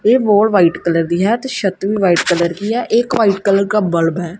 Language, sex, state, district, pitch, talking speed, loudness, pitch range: Punjabi, female, Punjab, Kapurthala, 195 Hz, 260 wpm, -14 LUFS, 175-215 Hz